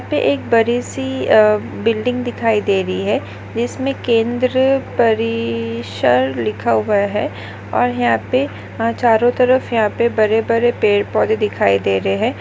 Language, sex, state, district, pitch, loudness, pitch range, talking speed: Hindi, female, Maharashtra, Nagpur, 225 Hz, -17 LUFS, 185-240 Hz, 155 wpm